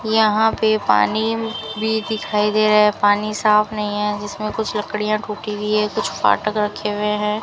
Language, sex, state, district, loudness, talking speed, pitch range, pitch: Hindi, female, Rajasthan, Bikaner, -19 LUFS, 185 wpm, 210-215 Hz, 210 Hz